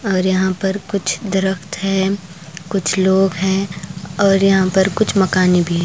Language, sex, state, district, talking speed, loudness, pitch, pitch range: Hindi, female, Bihar, Patna, 165 wpm, -17 LUFS, 190 Hz, 180-195 Hz